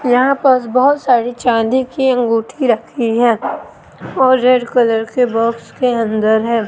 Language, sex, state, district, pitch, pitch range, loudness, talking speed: Hindi, female, Madhya Pradesh, Katni, 245 Hz, 230-260 Hz, -14 LUFS, 155 wpm